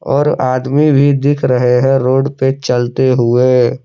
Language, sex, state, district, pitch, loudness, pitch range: Hindi, male, Jharkhand, Palamu, 130 Hz, -12 LUFS, 125-140 Hz